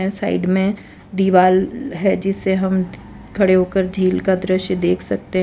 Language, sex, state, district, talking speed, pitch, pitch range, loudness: Hindi, female, Gujarat, Valsad, 165 wpm, 190 Hz, 185-195 Hz, -18 LUFS